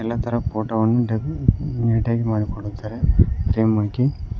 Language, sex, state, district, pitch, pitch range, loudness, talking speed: Kannada, male, Karnataka, Koppal, 110 Hz, 105-115 Hz, -21 LUFS, 135 wpm